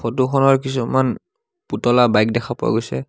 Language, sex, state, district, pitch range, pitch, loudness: Assamese, male, Assam, Sonitpur, 115-130 Hz, 120 Hz, -18 LUFS